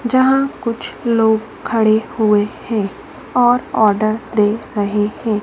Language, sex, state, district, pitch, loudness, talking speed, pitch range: Hindi, female, Madhya Pradesh, Dhar, 220 Hz, -16 LUFS, 120 wpm, 210-235 Hz